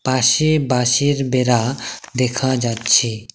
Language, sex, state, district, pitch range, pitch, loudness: Bengali, male, West Bengal, Cooch Behar, 120-130 Hz, 125 Hz, -17 LUFS